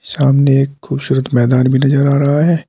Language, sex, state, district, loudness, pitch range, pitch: Hindi, male, Uttar Pradesh, Saharanpur, -13 LUFS, 135-140 Hz, 140 Hz